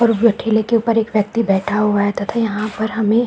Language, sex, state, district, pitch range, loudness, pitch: Hindi, female, Bihar, Saran, 210-230 Hz, -17 LUFS, 220 Hz